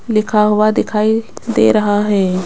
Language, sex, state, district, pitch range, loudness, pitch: Hindi, female, Rajasthan, Jaipur, 195-215 Hz, -14 LUFS, 210 Hz